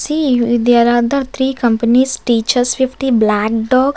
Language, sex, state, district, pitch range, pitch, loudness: English, female, Maharashtra, Gondia, 235-265 Hz, 245 Hz, -14 LUFS